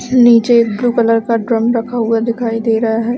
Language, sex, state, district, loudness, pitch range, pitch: Hindi, female, Chhattisgarh, Balrampur, -13 LUFS, 225-240 Hz, 230 Hz